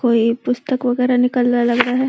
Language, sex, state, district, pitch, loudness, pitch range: Hindi, female, Uttar Pradesh, Deoria, 245 Hz, -17 LUFS, 240-250 Hz